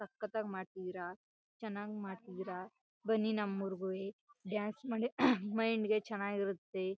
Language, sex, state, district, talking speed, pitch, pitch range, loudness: Kannada, female, Karnataka, Chamarajanagar, 120 wpm, 205 Hz, 190-220 Hz, -38 LUFS